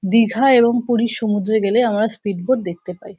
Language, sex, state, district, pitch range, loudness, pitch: Bengali, female, West Bengal, North 24 Parganas, 205-235 Hz, -17 LUFS, 220 Hz